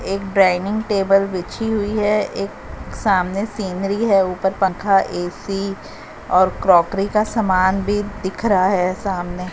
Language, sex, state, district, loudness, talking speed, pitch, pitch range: Hindi, female, Haryana, Jhajjar, -19 LUFS, 140 wpm, 195 Hz, 185-205 Hz